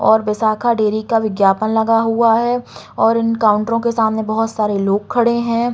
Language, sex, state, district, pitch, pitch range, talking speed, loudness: Hindi, female, Uttar Pradesh, Hamirpur, 225 Hz, 215-230 Hz, 190 wpm, -16 LUFS